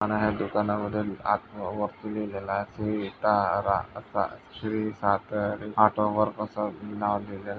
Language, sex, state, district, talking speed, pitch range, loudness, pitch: Marathi, male, Maharashtra, Sindhudurg, 125 wpm, 100-105 Hz, -28 LUFS, 105 Hz